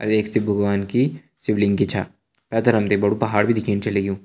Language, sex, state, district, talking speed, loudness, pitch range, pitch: Hindi, male, Uttarakhand, Tehri Garhwal, 240 wpm, -21 LUFS, 100-110 Hz, 105 Hz